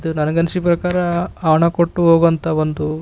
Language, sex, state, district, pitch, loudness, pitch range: Kannada, male, Karnataka, Raichur, 170 Hz, -16 LUFS, 155-175 Hz